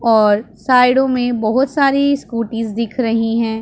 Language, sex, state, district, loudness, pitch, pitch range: Hindi, female, Punjab, Pathankot, -15 LUFS, 230 Hz, 225-260 Hz